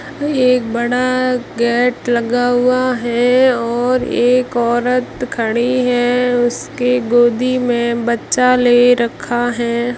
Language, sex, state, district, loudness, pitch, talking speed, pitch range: Hindi, female, Rajasthan, Jaisalmer, -15 LUFS, 245 Hz, 115 wpm, 240-250 Hz